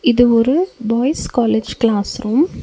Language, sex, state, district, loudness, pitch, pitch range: Tamil, female, Tamil Nadu, Nilgiris, -16 LUFS, 240 Hz, 225-265 Hz